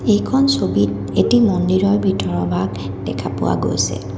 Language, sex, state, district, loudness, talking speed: Assamese, female, Assam, Kamrup Metropolitan, -18 LUFS, 130 wpm